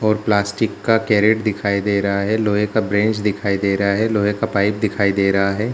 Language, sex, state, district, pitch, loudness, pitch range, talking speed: Hindi, male, Bihar, Jahanabad, 105 Hz, -18 LUFS, 100-110 Hz, 250 wpm